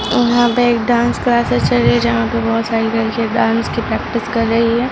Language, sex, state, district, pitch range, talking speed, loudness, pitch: Hindi, female, Bihar, East Champaran, 225-240 Hz, 245 wpm, -15 LUFS, 230 Hz